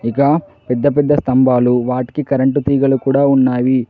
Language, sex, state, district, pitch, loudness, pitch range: Telugu, male, Telangana, Mahabubabad, 130 Hz, -14 LUFS, 125-140 Hz